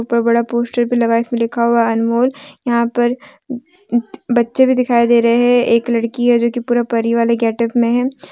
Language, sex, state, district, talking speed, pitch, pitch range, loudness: Hindi, female, Jharkhand, Deoghar, 215 wpm, 235 Hz, 235-245 Hz, -15 LUFS